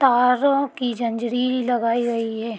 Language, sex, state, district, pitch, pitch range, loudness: Hindi, female, Uttar Pradesh, Deoria, 245 Hz, 230-255 Hz, -21 LUFS